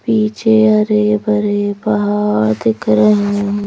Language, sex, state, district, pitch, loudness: Hindi, female, Madhya Pradesh, Bhopal, 205 Hz, -14 LUFS